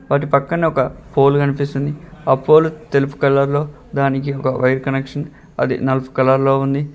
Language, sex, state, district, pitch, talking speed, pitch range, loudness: Telugu, male, Telangana, Mahabubabad, 140 Hz, 155 wpm, 135-145 Hz, -17 LUFS